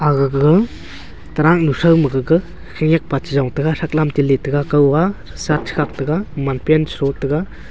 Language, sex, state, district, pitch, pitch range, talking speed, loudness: Wancho, male, Arunachal Pradesh, Longding, 145 Hz, 135-160 Hz, 180 wpm, -16 LUFS